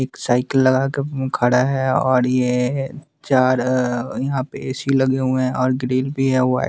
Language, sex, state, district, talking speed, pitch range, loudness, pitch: Hindi, male, Bihar, West Champaran, 190 wpm, 130-135 Hz, -19 LUFS, 130 Hz